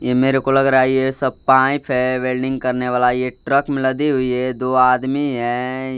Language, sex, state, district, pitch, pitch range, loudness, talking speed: Hindi, male, Bihar, Kaimur, 130 Hz, 125-135 Hz, -17 LUFS, 210 wpm